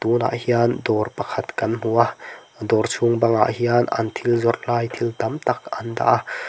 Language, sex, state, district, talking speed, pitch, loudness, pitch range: Mizo, male, Mizoram, Aizawl, 175 wpm, 115 Hz, -21 LUFS, 110-120 Hz